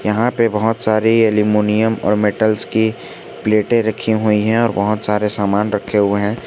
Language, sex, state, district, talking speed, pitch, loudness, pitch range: Hindi, male, Jharkhand, Garhwa, 175 wpm, 105 Hz, -16 LUFS, 105-110 Hz